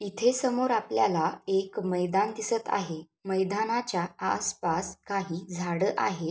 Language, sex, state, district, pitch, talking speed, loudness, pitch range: Marathi, female, Maharashtra, Sindhudurg, 195 Hz, 115 wpm, -29 LUFS, 180-220 Hz